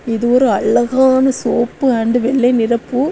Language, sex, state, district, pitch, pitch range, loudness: Tamil, female, Tamil Nadu, Kanyakumari, 245 Hz, 235-260 Hz, -14 LUFS